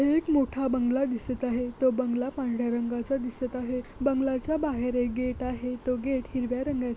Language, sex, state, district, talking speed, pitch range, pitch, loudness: Marathi, female, Maharashtra, Nagpur, 170 wpm, 245-270 Hz, 255 Hz, -28 LUFS